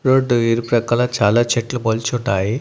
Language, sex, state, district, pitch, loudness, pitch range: Telugu, male, Andhra Pradesh, Annamaya, 120 Hz, -17 LUFS, 115-125 Hz